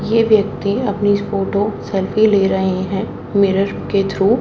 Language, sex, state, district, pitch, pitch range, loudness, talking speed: Hindi, male, Haryana, Jhajjar, 200 Hz, 195-210 Hz, -17 LUFS, 165 wpm